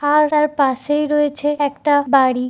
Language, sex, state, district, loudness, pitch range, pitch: Bengali, female, West Bengal, Kolkata, -17 LUFS, 275-295 Hz, 290 Hz